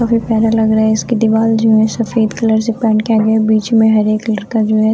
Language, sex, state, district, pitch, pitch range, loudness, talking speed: Hindi, female, Jharkhand, Sahebganj, 220 Hz, 220-225 Hz, -13 LUFS, 265 wpm